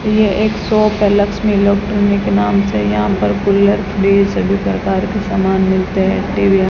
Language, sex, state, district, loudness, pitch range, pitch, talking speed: Hindi, female, Rajasthan, Bikaner, -14 LUFS, 190-205 Hz, 200 Hz, 185 wpm